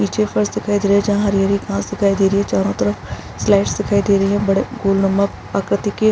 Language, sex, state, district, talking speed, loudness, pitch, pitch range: Hindi, female, Bihar, Araria, 225 wpm, -17 LUFS, 200 Hz, 195-205 Hz